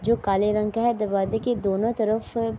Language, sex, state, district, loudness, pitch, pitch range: Urdu, female, Andhra Pradesh, Anantapur, -24 LUFS, 220 Hz, 205-230 Hz